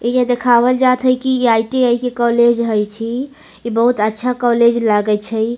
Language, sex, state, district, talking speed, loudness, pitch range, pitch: Maithili, female, Bihar, Samastipur, 170 wpm, -15 LUFS, 225-250 Hz, 235 Hz